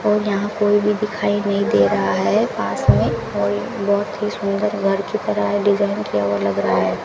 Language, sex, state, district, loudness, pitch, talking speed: Hindi, female, Rajasthan, Bikaner, -19 LUFS, 200 Hz, 210 wpm